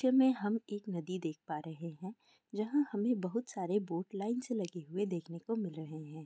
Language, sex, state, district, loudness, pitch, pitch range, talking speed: Hindi, female, Bihar, Gopalganj, -37 LUFS, 200 Hz, 170-225 Hz, 200 wpm